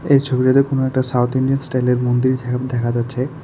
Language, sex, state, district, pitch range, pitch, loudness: Bengali, male, Tripura, West Tripura, 125-135 Hz, 130 Hz, -18 LUFS